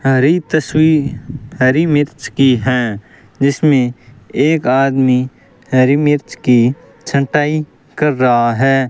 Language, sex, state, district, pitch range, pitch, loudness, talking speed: Hindi, male, Rajasthan, Bikaner, 125-150 Hz, 135 Hz, -14 LUFS, 115 wpm